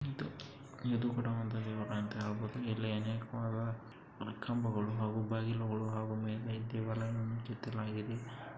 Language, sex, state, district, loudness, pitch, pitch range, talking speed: Kannada, male, Karnataka, Chamarajanagar, -39 LUFS, 115 Hz, 110-120 Hz, 65 wpm